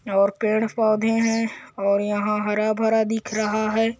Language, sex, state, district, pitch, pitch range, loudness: Hindi, male, Chhattisgarh, Korba, 215 Hz, 210-225 Hz, -22 LUFS